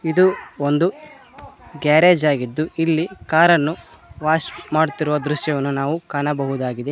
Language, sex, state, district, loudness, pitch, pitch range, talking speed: Kannada, male, Karnataka, Koppal, -19 LUFS, 155 Hz, 145-170 Hz, 95 wpm